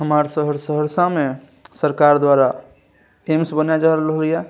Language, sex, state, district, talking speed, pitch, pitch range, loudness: Maithili, male, Bihar, Saharsa, 135 wpm, 150 Hz, 145-160 Hz, -18 LUFS